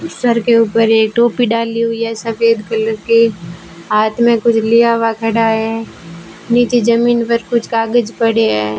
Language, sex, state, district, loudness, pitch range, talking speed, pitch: Hindi, female, Rajasthan, Bikaner, -14 LUFS, 220-235 Hz, 170 wpm, 230 Hz